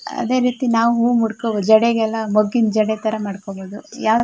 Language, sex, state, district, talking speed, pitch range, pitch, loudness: Kannada, female, Karnataka, Shimoga, 140 wpm, 215-235 Hz, 220 Hz, -18 LUFS